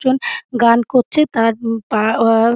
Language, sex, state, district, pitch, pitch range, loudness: Bengali, female, West Bengal, Dakshin Dinajpur, 235 Hz, 225-260 Hz, -15 LUFS